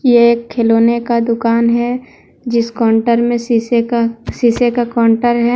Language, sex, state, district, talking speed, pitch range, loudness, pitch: Hindi, female, Jharkhand, Deoghar, 160 wpm, 230-240 Hz, -14 LUFS, 235 Hz